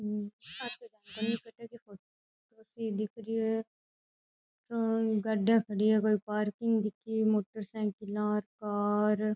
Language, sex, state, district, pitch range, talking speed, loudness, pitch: Rajasthani, female, Rajasthan, Churu, 210-225 Hz, 75 wpm, -32 LUFS, 215 Hz